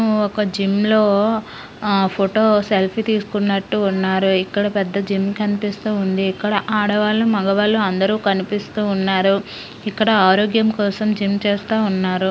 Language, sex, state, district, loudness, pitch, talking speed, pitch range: Telugu, female, Andhra Pradesh, Srikakulam, -18 LUFS, 205 Hz, 115 wpm, 195-215 Hz